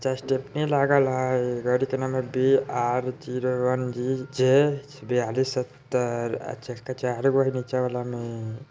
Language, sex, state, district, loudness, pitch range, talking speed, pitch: Bajjika, female, Bihar, Vaishali, -25 LUFS, 125-135 Hz, 125 wpm, 130 Hz